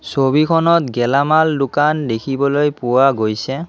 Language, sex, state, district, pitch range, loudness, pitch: Assamese, male, Assam, Kamrup Metropolitan, 130-155 Hz, -15 LUFS, 140 Hz